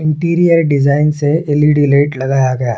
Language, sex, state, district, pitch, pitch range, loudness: Hindi, male, Chhattisgarh, Korba, 145 Hz, 140-155 Hz, -12 LUFS